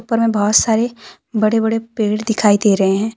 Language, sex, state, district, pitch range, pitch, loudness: Hindi, female, Jharkhand, Deoghar, 210-225 Hz, 220 Hz, -16 LUFS